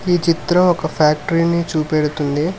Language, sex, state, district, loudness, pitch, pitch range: Telugu, male, Telangana, Hyderabad, -17 LUFS, 165 Hz, 150-175 Hz